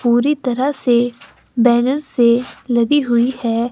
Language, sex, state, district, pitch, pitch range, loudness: Hindi, female, Himachal Pradesh, Shimla, 245 Hz, 235-260 Hz, -16 LUFS